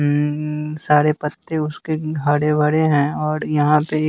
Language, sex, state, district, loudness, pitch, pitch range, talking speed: Hindi, male, Bihar, West Champaran, -19 LUFS, 150 Hz, 150-155 Hz, 145 wpm